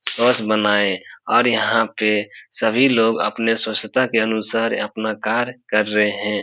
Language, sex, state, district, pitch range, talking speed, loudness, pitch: Hindi, male, Bihar, Supaul, 105-115 Hz, 150 wpm, -18 LUFS, 110 Hz